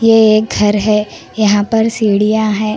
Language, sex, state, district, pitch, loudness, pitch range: Hindi, female, Karnataka, Koppal, 215 Hz, -12 LUFS, 210-220 Hz